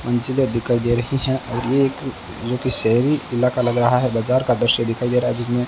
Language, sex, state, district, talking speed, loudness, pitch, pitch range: Hindi, male, Rajasthan, Bikaner, 255 wpm, -18 LUFS, 125 Hz, 120-130 Hz